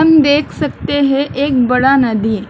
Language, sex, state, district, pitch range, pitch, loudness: Hindi, female, West Bengal, Alipurduar, 250-285 Hz, 275 Hz, -13 LUFS